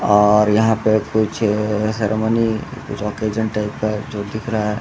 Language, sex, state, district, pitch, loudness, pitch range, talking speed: Hindi, male, Bihar, Samastipur, 110 Hz, -19 LUFS, 105-110 Hz, 160 wpm